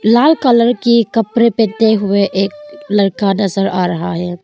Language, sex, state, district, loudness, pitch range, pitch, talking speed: Hindi, female, Arunachal Pradesh, Longding, -13 LUFS, 195-230 Hz, 200 Hz, 150 wpm